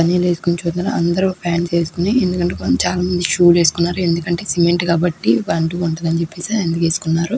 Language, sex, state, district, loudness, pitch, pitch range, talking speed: Telugu, female, Andhra Pradesh, Krishna, -17 LUFS, 170 Hz, 165-175 Hz, 140 wpm